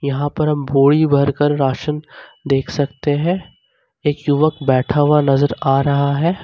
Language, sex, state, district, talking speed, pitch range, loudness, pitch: Hindi, male, Jharkhand, Ranchi, 170 wpm, 140-150 Hz, -17 LUFS, 145 Hz